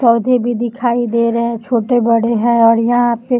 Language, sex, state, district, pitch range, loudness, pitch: Hindi, female, Uttar Pradesh, Deoria, 230-240 Hz, -14 LUFS, 235 Hz